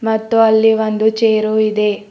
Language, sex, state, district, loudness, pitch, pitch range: Kannada, female, Karnataka, Bidar, -14 LUFS, 220 Hz, 215-220 Hz